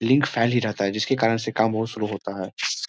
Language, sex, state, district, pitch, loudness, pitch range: Hindi, male, Bihar, Jamui, 110 Hz, -23 LUFS, 105-115 Hz